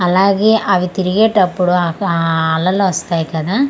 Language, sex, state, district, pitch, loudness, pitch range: Telugu, female, Andhra Pradesh, Manyam, 180 Hz, -14 LUFS, 170-200 Hz